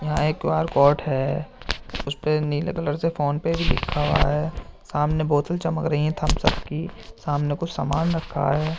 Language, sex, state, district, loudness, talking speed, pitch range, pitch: Hindi, male, Uttar Pradesh, Jyotiba Phule Nagar, -24 LUFS, 175 wpm, 145-165 Hz, 150 Hz